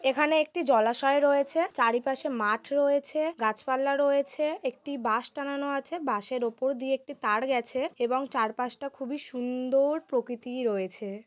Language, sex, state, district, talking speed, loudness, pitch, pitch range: Bengali, female, West Bengal, Malda, 145 wpm, -28 LUFS, 265 Hz, 240-285 Hz